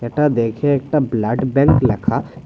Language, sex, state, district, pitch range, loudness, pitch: Bengali, male, Tripura, West Tripura, 120-145 Hz, -17 LUFS, 130 Hz